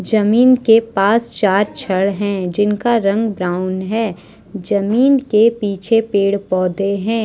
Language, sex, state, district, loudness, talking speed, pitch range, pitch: Hindi, male, Jharkhand, Deoghar, -15 LUFS, 130 wpm, 195-225 Hz, 205 Hz